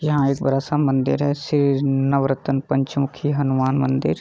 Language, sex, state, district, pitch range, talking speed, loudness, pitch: Hindi, male, Bihar, Begusarai, 135-145 Hz, 155 wpm, -20 LUFS, 140 Hz